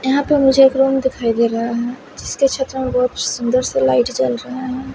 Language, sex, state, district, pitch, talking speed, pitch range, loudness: Hindi, female, Himachal Pradesh, Shimla, 255 Hz, 230 wpm, 235-265 Hz, -17 LUFS